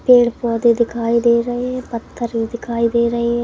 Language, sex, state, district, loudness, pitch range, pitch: Hindi, female, Madhya Pradesh, Katni, -17 LUFS, 235-240 Hz, 235 Hz